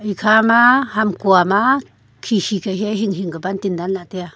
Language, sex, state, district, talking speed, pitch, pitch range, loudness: Wancho, female, Arunachal Pradesh, Longding, 165 wpm, 200 Hz, 190-220 Hz, -16 LUFS